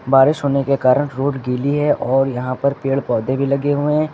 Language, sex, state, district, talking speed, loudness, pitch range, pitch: Hindi, male, Uttar Pradesh, Lucknow, 230 wpm, -18 LUFS, 130-145 Hz, 140 Hz